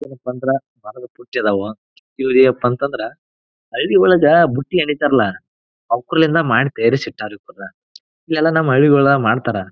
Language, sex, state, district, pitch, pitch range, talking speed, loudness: Kannada, male, Karnataka, Bijapur, 130 Hz, 115-145 Hz, 125 wpm, -16 LUFS